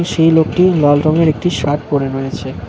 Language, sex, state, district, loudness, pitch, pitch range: Bengali, male, West Bengal, Cooch Behar, -14 LUFS, 155 Hz, 145-165 Hz